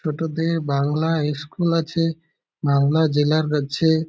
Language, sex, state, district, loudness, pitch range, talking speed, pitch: Bengali, male, West Bengal, Malda, -21 LUFS, 150-165 Hz, 105 wpm, 160 Hz